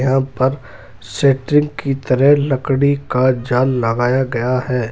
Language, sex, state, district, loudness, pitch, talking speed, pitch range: Hindi, female, Bihar, Madhepura, -16 LUFS, 130 Hz, 135 wpm, 125-135 Hz